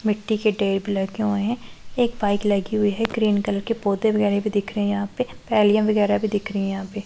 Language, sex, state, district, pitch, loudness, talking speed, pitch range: Hindi, female, Punjab, Pathankot, 205 Hz, -22 LUFS, 255 wpm, 200-215 Hz